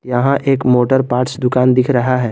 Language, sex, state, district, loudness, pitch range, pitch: Hindi, male, Jharkhand, Garhwa, -14 LUFS, 125-130 Hz, 125 Hz